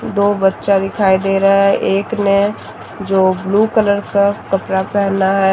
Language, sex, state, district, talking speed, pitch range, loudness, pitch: Hindi, female, Jharkhand, Deoghar, 160 wpm, 195-205 Hz, -14 LUFS, 195 Hz